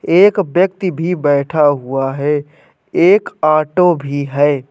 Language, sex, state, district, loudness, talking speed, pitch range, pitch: Hindi, male, Uttar Pradesh, Hamirpur, -14 LUFS, 130 wpm, 145-185 Hz, 155 Hz